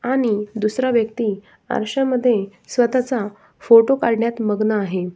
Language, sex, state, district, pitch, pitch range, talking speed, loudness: Marathi, female, Maharashtra, Sindhudurg, 230 Hz, 210-250 Hz, 115 wpm, -19 LUFS